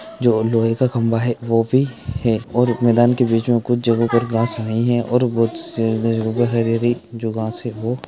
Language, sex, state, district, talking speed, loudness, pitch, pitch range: Hindi, male, Andhra Pradesh, Anantapur, 165 wpm, -18 LUFS, 115 Hz, 115-120 Hz